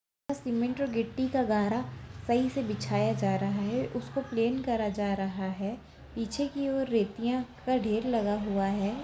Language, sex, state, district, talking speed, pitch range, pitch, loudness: Kumaoni, female, Uttarakhand, Tehri Garhwal, 170 wpm, 205-255 Hz, 230 Hz, -30 LUFS